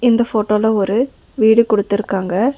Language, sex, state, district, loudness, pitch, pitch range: Tamil, female, Tamil Nadu, Nilgiris, -16 LUFS, 220 Hz, 205-235 Hz